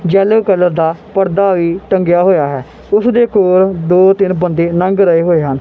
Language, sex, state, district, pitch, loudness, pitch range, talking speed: Punjabi, male, Punjab, Kapurthala, 185 Hz, -12 LUFS, 170-195 Hz, 180 wpm